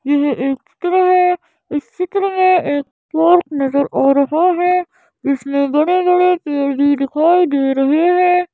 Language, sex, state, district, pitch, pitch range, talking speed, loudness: Hindi, female, Madhya Pradesh, Bhopal, 320 Hz, 280-360 Hz, 155 wpm, -15 LUFS